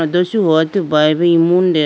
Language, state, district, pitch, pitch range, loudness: Idu Mishmi, Arunachal Pradesh, Lower Dibang Valley, 170 Hz, 160-180 Hz, -14 LUFS